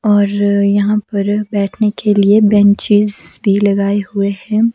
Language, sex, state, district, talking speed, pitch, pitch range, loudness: Hindi, female, Himachal Pradesh, Shimla, 140 wpm, 205 Hz, 200-210 Hz, -13 LUFS